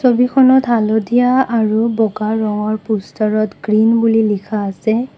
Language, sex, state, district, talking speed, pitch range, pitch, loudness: Assamese, female, Assam, Kamrup Metropolitan, 115 wpm, 215-235 Hz, 220 Hz, -15 LUFS